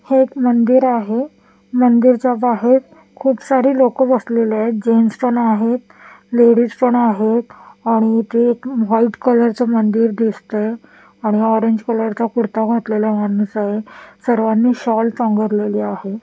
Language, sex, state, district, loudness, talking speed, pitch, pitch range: Marathi, female, Maharashtra, Washim, -16 LUFS, 135 wpm, 230 Hz, 220-245 Hz